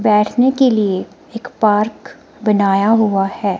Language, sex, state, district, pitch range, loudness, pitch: Hindi, female, Himachal Pradesh, Shimla, 200-225 Hz, -15 LUFS, 215 Hz